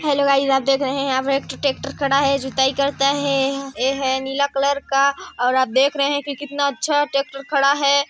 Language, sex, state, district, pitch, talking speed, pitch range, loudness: Hindi, female, Chhattisgarh, Sarguja, 275 Hz, 235 wpm, 270-280 Hz, -19 LUFS